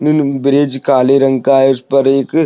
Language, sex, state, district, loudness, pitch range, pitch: Hindi, male, Maharashtra, Sindhudurg, -12 LUFS, 135-140 Hz, 135 Hz